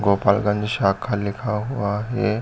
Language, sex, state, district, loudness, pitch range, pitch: Hindi, male, Chhattisgarh, Bilaspur, -22 LUFS, 100-110 Hz, 105 Hz